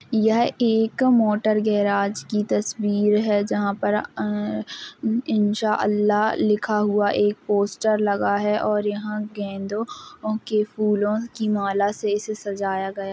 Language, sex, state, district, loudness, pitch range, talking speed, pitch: Hindi, female, Uttar Pradesh, Jalaun, -22 LUFS, 205-215 Hz, 135 wpm, 210 Hz